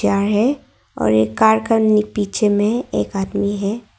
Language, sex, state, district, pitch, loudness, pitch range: Hindi, female, Arunachal Pradesh, Longding, 210 Hz, -17 LUFS, 200-220 Hz